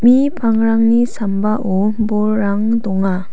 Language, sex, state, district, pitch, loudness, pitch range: Garo, female, Meghalaya, South Garo Hills, 215 Hz, -16 LUFS, 200-230 Hz